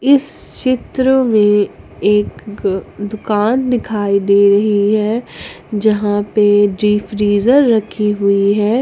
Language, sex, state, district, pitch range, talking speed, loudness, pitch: Hindi, female, Jharkhand, Ranchi, 205-225 Hz, 110 wpm, -14 LUFS, 210 Hz